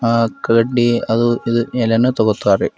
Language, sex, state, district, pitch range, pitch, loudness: Kannada, male, Karnataka, Bidar, 115-120 Hz, 115 Hz, -16 LUFS